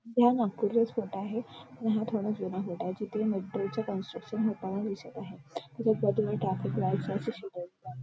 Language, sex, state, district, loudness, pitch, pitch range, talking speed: Marathi, female, Maharashtra, Nagpur, -32 LUFS, 210 Hz, 190-225 Hz, 140 wpm